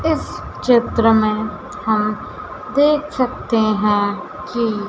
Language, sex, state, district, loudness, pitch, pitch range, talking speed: Hindi, female, Madhya Pradesh, Dhar, -18 LUFS, 215 Hz, 210-250 Hz, 100 wpm